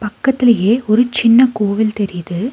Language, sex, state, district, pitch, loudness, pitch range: Tamil, female, Tamil Nadu, Nilgiris, 220 Hz, -14 LUFS, 205-240 Hz